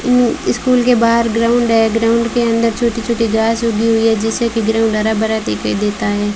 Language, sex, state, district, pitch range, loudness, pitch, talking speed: Hindi, female, Rajasthan, Bikaner, 220-235 Hz, -14 LUFS, 225 Hz, 205 wpm